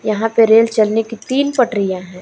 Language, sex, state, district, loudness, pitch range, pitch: Hindi, female, Jharkhand, Palamu, -15 LUFS, 210-230 Hz, 225 Hz